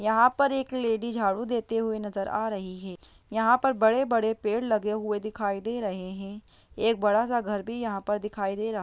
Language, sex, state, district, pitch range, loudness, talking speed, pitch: Hindi, female, Bihar, Lakhisarai, 205-230 Hz, -27 LUFS, 225 wpm, 220 Hz